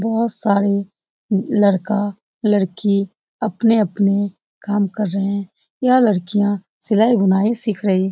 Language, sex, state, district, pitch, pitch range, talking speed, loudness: Hindi, female, Bihar, Lakhisarai, 205 Hz, 195-220 Hz, 120 wpm, -18 LUFS